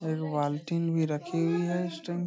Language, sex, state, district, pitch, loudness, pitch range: Hindi, male, Bihar, Saharsa, 165 Hz, -30 LUFS, 155-175 Hz